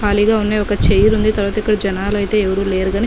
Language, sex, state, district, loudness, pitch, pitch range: Telugu, female, Telangana, Nalgonda, -16 LUFS, 205 Hz, 195-215 Hz